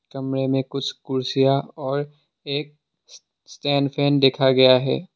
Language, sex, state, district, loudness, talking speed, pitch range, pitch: Hindi, male, Assam, Sonitpur, -21 LUFS, 130 wpm, 135-145 Hz, 135 Hz